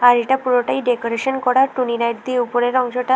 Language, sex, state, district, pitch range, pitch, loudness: Bengali, female, Tripura, West Tripura, 240-255 Hz, 250 Hz, -18 LUFS